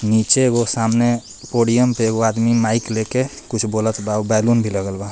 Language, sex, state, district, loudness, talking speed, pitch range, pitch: Bhojpuri, male, Jharkhand, Palamu, -18 LUFS, 185 wpm, 110-120 Hz, 115 Hz